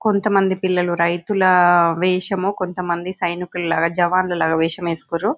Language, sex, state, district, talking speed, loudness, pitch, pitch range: Telugu, female, Telangana, Nalgonda, 110 wpm, -18 LUFS, 180 Hz, 170-185 Hz